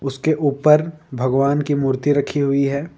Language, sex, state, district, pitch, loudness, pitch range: Hindi, male, Jharkhand, Ranchi, 145 Hz, -18 LUFS, 140-150 Hz